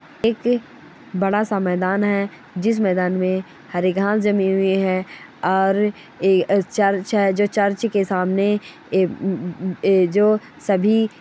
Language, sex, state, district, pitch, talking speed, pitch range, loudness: Hindi, female, Bihar, Sitamarhi, 195 Hz, 140 wpm, 185-210 Hz, -20 LUFS